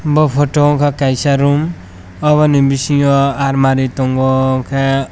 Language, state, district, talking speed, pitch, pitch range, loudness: Kokborok, Tripura, West Tripura, 140 wpm, 140 Hz, 130-145 Hz, -13 LUFS